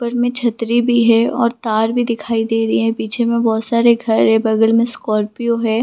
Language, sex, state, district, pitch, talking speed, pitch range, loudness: Hindi, female, Jharkhand, Sahebganj, 230 Hz, 225 wpm, 220-235 Hz, -16 LUFS